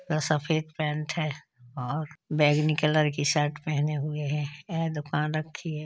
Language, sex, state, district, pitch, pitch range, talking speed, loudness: Hindi, male, Uttar Pradesh, Hamirpur, 150 Hz, 150-155 Hz, 155 wpm, -28 LUFS